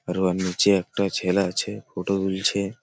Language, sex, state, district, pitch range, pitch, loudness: Bengali, male, West Bengal, Malda, 90-100 Hz, 95 Hz, -24 LUFS